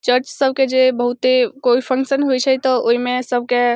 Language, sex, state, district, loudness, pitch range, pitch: Maithili, female, Bihar, Samastipur, -17 LUFS, 245-265 Hz, 255 Hz